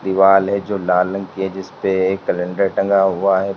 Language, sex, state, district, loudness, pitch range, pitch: Hindi, male, Uttar Pradesh, Lalitpur, -17 LUFS, 95-100 Hz, 95 Hz